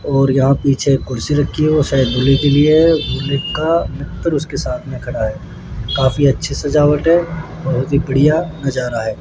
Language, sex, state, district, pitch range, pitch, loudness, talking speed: Hindi, male, Rajasthan, Jaipur, 135-155 Hz, 140 Hz, -15 LUFS, 155 wpm